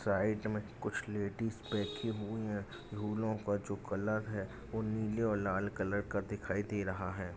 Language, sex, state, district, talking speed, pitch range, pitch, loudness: Hindi, male, Bihar, Jamui, 180 wpm, 100-110 Hz, 105 Hz, -38 LUFS